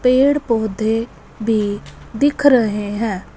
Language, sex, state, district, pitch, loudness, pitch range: Hindi, male, Punjab, Fazilka, 225 Hz, -17 LUFS, 215-255 Hz